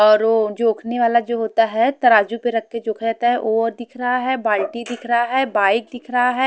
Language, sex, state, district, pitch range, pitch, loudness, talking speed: Hindi, female, Haryana, Jhajjar, 225-245 Hz, 235 Hz, -19 LUFS, 240 wpm